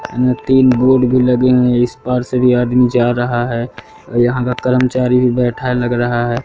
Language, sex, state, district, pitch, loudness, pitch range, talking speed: Hindi, male, Madhya Pradesh, Katni, 125 Hz, -14 LUFS, 120-125 Hz, 185 wpm